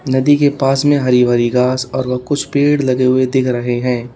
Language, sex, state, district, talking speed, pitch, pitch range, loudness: Hindi, male, Uttar Pradesh, Lalitpur, 215 wpm, 130 Hz, 125-140 Hz, -14 LUFS